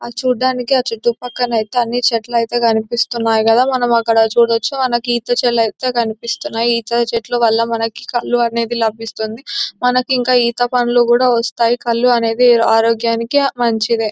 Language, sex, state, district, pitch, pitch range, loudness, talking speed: Telugu, female, Telangana, Nalgonda, 235 Hz, 230-245 Hz, -15 LUFS, 145 wpm